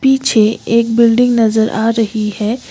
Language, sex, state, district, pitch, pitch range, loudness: Hindi, female, Sikkim, Gangtok, 225 Hz, 220-235 Hz, -13 LUFS